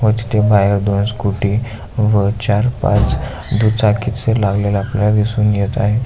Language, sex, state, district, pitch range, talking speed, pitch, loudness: Marathi, male, Maharashtra, Aurangabad, 100-110 Hz, 140 wpm, 105 Hz, -15 LUFS